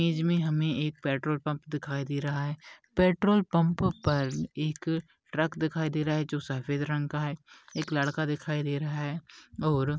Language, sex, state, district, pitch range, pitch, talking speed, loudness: Hindi, male, Maharashtra, Pune, 145-160 Hz, 150 Hz, 190 wpm, -30 LUFS